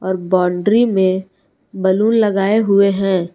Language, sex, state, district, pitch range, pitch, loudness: Hindi, female, Jharkhand, Palamu, 185-210 Hz, 195 Hz, -15 LUFS